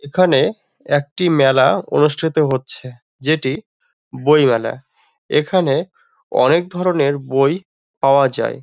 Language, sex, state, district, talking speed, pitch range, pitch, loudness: Bengali, male, West Bengal, Dakshin Dinajpur, 95 wpm, 135-165 Hz, 145 Hz, -17 LUFS